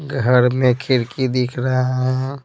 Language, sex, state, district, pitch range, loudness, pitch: Hindi, male, Bihar, Patna, 125-130 Hz, -18 LUFS, 130 Hz